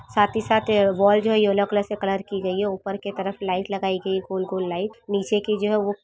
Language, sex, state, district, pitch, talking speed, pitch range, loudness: Hindi, female, Jharkhand, Sahebganj, 200 Hz, 290 wpm, 195-210 Hz, -23 LUFS